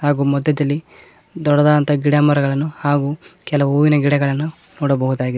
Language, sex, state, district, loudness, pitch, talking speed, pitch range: Kannada, male, Karnataka, Koppal, -17 LUFS, 145 Hz, 100 wpm, 140-150 Hz